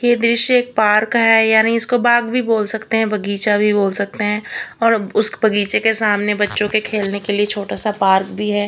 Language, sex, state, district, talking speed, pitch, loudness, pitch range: Hindi, female, Chandigarh, Chandigarh, 230 wpm, 215 Hz, -16 LUFS, 205-230 Hz